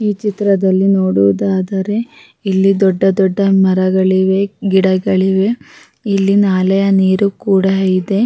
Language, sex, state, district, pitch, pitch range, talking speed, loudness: Kannada, female, Karnataka, Raichur, 195 Hz, 190-200 Hz, 95 wpm, -13 LUFS